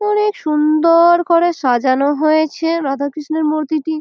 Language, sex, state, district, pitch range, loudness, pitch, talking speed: Bengali, female, West Bengal, Malda, 300-335 Hz, -15 LUFS, 310 Hz, 105 wpm